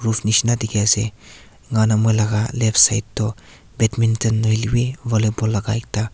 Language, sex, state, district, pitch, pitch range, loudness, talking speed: Nagamese, male, Nagaland, Kohima, 110 Hz, 110-115 Hz, -18 LUFS, 155 wpm